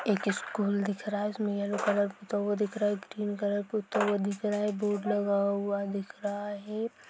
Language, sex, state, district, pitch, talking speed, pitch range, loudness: Hindi, female, Chhattisgarh, Jashpur, 205 Hz, 220 wpm, 200-210 Hz, -31 LUFS